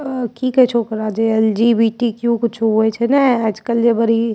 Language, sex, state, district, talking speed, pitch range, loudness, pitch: Angika, female, Bihar, Bhagalpur, 205 wpm, 220-235 Hz, -16 LUFS, 230 Hz